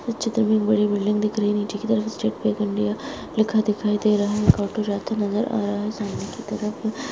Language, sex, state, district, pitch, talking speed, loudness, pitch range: Hindi, female, Uttarakhand, Tehri Garhwal, 210 Hz, 255 wpm, -23 LUFS, 205-220 Hz